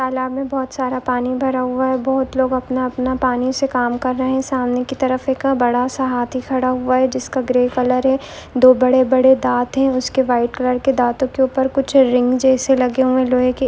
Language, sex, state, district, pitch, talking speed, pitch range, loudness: Hindi, female, Maharashtra, Aurangabad, 255 Hz, 215 wpm, 255-265 Hz, -17 LUFS